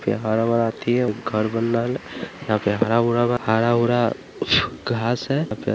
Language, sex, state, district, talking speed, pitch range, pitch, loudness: Hindi, male, Bihar, Vaishali, 145 wpm, 110-120 Hz, 115 Hz, -21 LUFS